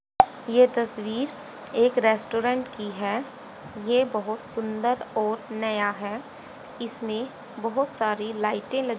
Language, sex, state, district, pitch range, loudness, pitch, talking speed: Hindi, female, Haryana, Jhajjar, 215-255 Hz, -26 LUFS, 230 Hz, 120 wpm